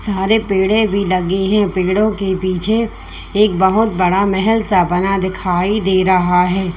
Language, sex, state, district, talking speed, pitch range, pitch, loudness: Hindi, female, Uttar Pradesh, Lalitpur, 160 wpm, 185-210 Hz, 190 Hz, -15 LUFS